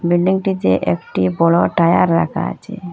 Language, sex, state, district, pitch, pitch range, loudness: Bengali, female, Assam, Hailakandi, 170 Hz, 160-180 Hz, -16 LUFS